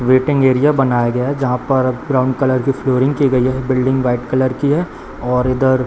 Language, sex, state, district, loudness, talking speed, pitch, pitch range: Hindi, male, Bihar, Samastipur, -15 LUFS, 215 wpm, 130 Hz, 125-135 Hz